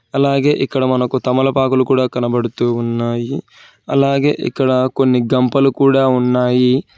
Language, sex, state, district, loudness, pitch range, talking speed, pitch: Telugu, male, Telangana, Hyderabad, -15 LUFS, 125-135 Hz, 110 wpm, 130 Hz